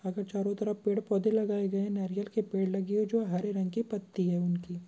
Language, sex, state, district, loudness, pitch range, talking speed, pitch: Hindi, female, Rajasthan, Churu, -31 LUFS, 190-210 Hz, 260 wpm, 200 Hz